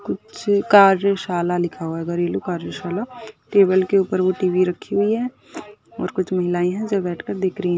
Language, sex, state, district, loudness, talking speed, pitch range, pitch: Hindi, female, Uttar Pradesh, Budaun, -20 LUFS, 190 wpm, 175-200 Hz, 185 Hz